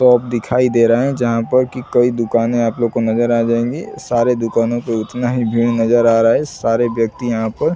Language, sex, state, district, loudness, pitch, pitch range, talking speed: Hindi, male, Chhattisgarh, Bilaspur, -16 LUFS, 120 Hz, 115-120 Hz, 225 wpm